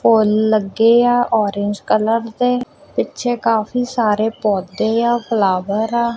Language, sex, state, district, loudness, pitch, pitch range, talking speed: Punjabi, female, Punjab, Kapurthala, -17 LUFS, 225 Hz, 210-240 Hz, 125 wpm